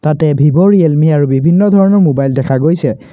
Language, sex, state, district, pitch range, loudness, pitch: Assamese, male, Assam, Kamrup Metropolitan, 140-180 Hz, -10 LUFS, 155 Hz